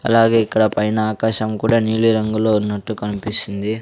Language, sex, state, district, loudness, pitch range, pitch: Telugu, male, Andhra Pradesh, Sri Satya Sai, -18 LUFS, 105-110 Hz, 110 Hz